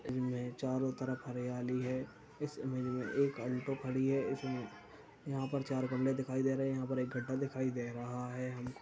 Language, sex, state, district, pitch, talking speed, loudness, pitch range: Hindi, male, Uttar Pradesh, Budaun, 130 Hz, 195 wpm, -38 LUFS, 125-135 Hz